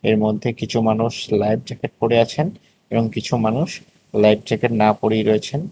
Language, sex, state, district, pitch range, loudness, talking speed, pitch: Bengali, male, Tripura, West Tripura, 110-120 Hz, -19 LUFS, 170 wpm, 115 Hz